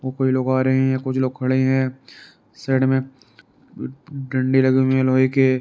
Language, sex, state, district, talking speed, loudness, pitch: Hindi, male, Uttar Pradesh, Jalaun, 180 wpm, -19 LUFS, 130 Hz